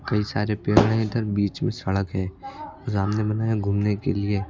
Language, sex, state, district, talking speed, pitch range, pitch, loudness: Hindi, male, Uttar Pradesh, Lucknow, 200 wpm, 100-110 Hz, 105 Hz, -24 LUFS